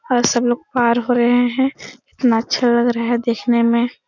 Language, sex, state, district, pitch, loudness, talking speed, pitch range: Hindi, female, Bihar, Supaul, 240 Hz, -17 LUFS, 205 wpm, 235-245 Hz